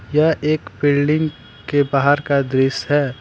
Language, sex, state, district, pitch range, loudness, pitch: Hindi, male, Jharkhand, Deoghar, 140-150 Hz, -18 LUFS, 145 Hz